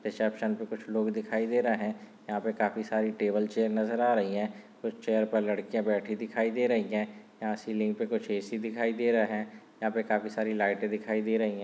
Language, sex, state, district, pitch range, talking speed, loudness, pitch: Hindi, male, Maharashtra, Nagpur, 105-110 Hz, 225 wpm, -31 LUFS, 110 Hz